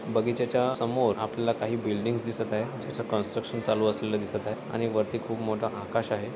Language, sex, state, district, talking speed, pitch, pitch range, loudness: Marathi, male, Maharashtra, Nagpur, 190 wpm, 115 Hz, 110-115 Hz, -29 LUFS